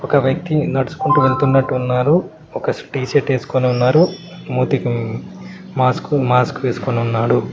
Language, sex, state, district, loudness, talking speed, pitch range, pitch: Telugu, male, Telangana, Mahabubabad, -17 LUFS, 125 wpm, 125-155 Hz, 135 Hz